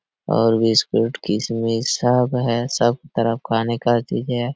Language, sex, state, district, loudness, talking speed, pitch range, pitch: Hindi, male, Jharkhand, Sahebganj, -20 LUFS, 145 wpm, 115-120 Hz, 115 Hz